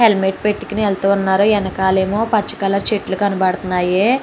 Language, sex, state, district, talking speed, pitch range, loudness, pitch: Telugu, female, Andhra Pradesh, Chittoor, 130 wpm, 190-210 Hz, -17 LUFS, 200 Hz